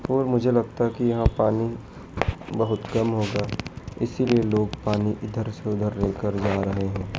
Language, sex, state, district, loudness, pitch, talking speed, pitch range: Hindi, male, Madhya Pradesh, Dhar, -25 LUFS, 110 Hz, 165 wpm, 105-120 Hz